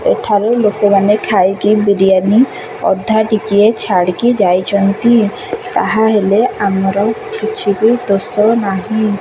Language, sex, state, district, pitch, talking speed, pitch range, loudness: Odia, female, Odisha, Khordha, 210 Hz, 100 wpm, 200-230 Hz, -13 LUFS